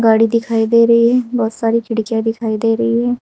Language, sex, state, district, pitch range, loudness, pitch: Hindi, female, Uttar Pradesh, Saharanpur, 225-235 Hz, -15 LUFS, 230 Hz